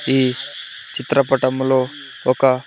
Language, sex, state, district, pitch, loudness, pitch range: Telugu, male, Andhra Pradesh, Sri Satya Sai, 130 Hz, -19 LUFS, 130-135 Hz